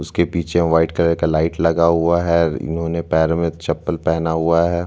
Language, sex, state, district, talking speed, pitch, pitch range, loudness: Hindi, male, Chhattisgarh, Bastar, 195 wpm, 85 Hz, 80-85 Hz, -18 LUFS